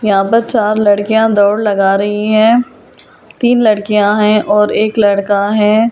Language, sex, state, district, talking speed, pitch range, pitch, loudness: Hindi, female, Delhi, New Delhi, 150 wpm, 205-220 Hz, 210 Hz, -11 LUFS